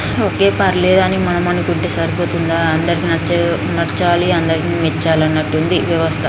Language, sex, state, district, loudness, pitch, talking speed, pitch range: Telugu, female, Telangana, Nalgonda, -15 LUFS, 170 Hz, 115 wpm, 160-175 Hz